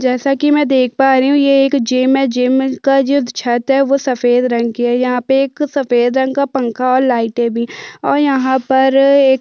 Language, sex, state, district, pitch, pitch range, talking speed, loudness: Hindi, female, Chhattisgarh, Sukma, 265 Hz, 250-275 Hz, 230 wpm, -13 LUFS